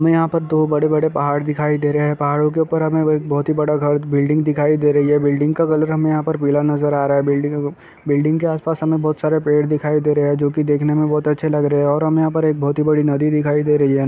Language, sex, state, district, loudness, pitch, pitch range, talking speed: Hindi, male, Jharkhand, Jamtara, -17 LUFS, 150 Hz, 145-155 Hz, 270 wpm